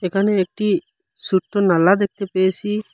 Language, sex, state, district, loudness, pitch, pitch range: Bengali, male, Assam, Hailakandi, -19 LUFS, 200 Hz, 190-210 Hz